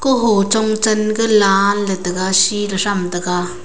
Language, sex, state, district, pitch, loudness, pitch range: Wancho, female, Arunachal Pradesh, Longding, 200 Hz, -15 LUFS, 185-215 Hz